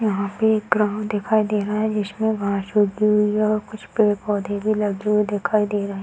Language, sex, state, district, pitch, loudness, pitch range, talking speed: Hindi, female, Bihar, Darbhanga, 210 Hz, -21 LUFS, 205-215 Hz, 230 wpm